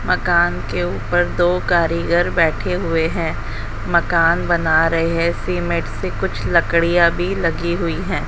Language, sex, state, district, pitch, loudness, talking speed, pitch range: Hindi, female, Haryana, Jhajjar, 170 Hz, -18 LUFS, 145 wpm, 160-175 Hz